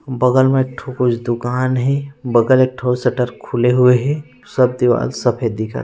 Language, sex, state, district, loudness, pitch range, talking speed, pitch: Chhattisgarhi, male, Chhattisgarh, Rajnandgaon, -16 LUFS, 120-130 Hz, 205 wpm, 125 Hz